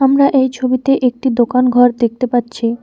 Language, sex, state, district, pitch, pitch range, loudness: Bengali, female, West Bengal, Alipurduar, 250 Hz, 240-260 Hz, -14 LUFS